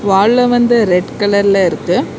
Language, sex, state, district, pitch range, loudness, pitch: Tamil, female, Karnataka, Bangalore, 190-240 Hz, -12 LUFS, 200 Hz